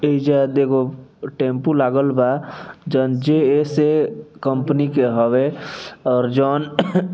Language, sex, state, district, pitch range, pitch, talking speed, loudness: Bhojpuri, male, Bihar, East Champaran, 130-150 Hz, 140 Hz, 120 wpm, -18 LUFS